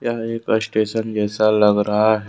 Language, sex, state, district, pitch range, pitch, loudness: Hindi, male, Jharkhand, Deoghar, 105-110 Hz, 110 Hz, -19 LUFS